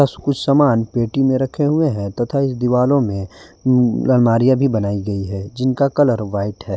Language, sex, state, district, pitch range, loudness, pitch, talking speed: Hindi, male, Jharkhand, Garhwa, 105-140 Hz, -17 LUFS, 125 Hz, 185 wpm